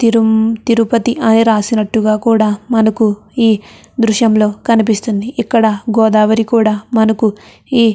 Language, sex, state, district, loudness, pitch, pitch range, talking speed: Telugu, female, Andhra Pradesh, Chittoor, -13 LUFS, 220 Hz, 215-230 Hz, 115 wpm